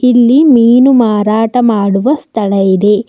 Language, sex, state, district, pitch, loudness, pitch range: Kannada, female, Karnataka, Bidar, 230 Hz, -9 LUFS, 210-250 Hz